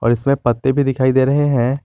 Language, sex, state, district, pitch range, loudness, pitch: Hindi, male, Jharkhand, Garhwa, 120-140 Hz, -16 LUFS, 130 Hz